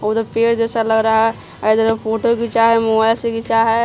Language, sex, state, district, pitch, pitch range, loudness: Hindi, female, Bihar, Patna, 225 Hz, 220-230 Hz, -16 LUFS